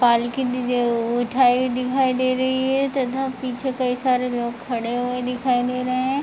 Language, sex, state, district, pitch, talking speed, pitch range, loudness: Hindi, female, Jharkhand, Jamtara, 250 Hz, 165 wpm, 245-260 Hz, -22 LUFS